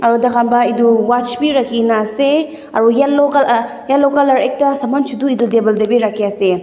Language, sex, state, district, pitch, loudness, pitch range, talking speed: Nagamese, female, Nagaland, Dimapur, 245 Hz, -14 LUFS, 230-275 Hz, 225 wpm